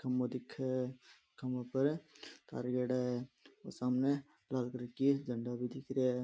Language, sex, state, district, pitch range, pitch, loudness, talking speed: Rajasthani, male, Rajasthan, Nagaur, 125-130 Hz, 125 Hz, -38 LUFS, 175 wpm